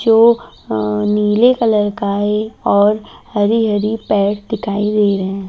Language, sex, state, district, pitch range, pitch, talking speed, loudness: Hindi, female, Bihar, Darbhanga, 200-220 Hz, 210 Hz, 155 wpm, -15 LUFS